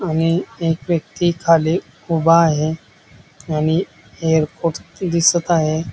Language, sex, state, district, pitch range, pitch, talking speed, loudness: Marathi, male, Maharashtra, Dhule, 160-170 Hz, 165 Hz, 100 wpm, -18 LUFS